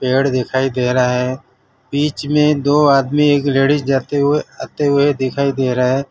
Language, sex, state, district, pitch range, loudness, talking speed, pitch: Hindi, male, Gujarat, Valsad, 130-145 Hz, -16 LUFS, 185 wpm, 135 Hz